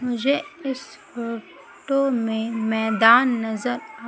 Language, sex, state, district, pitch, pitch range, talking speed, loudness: Hindi, female, Madhya Pradesh, Umaria, 235 Hz, 225-260 Hz, 105 wpm, -22 LUFS